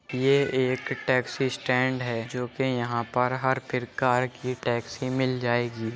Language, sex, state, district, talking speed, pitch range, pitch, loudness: Hindi, male, Uttar Pradesh, Jyotiba Phule Nagar, 150 wpm, 120-130 Hz, 125 Hz, -26 LUFS